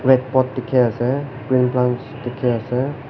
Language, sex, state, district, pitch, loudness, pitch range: Nagamese, male, Nagaland, Kohima, 130 Hz, -20 LUFS, 125-130 Hz